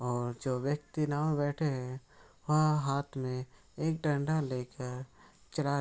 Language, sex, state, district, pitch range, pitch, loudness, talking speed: Hindi, male, Bihar, Araria, 125-150 Hz, 140 Hz, -33 LUFS, 155 wpm